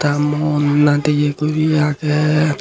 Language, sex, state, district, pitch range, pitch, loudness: Chakma, male, Tripura, Unakoti, 145-150 Hz, 150 Hz, -16 LUFS